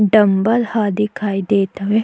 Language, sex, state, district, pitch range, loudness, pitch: Chhattisgarhi, female, Chhattisgarh, Jashpur, 200-215 Hz, -17 LUFS, 210 Hz